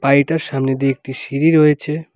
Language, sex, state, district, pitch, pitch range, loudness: Bengali, male, West Bengal, Alipurduar, 140 Hz, 135-155 Hz, -16 LUFS